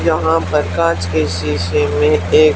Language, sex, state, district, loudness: Hindi, female, Haryana, Charkhi Dadri, -15 LUFS